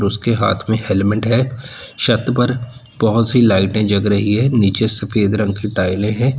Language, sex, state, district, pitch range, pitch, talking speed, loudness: Hindi, male, Uttar Pradesh, Lalitpur, 105-120 Hz, 110 Hz, 180 wpm, -16 LUFS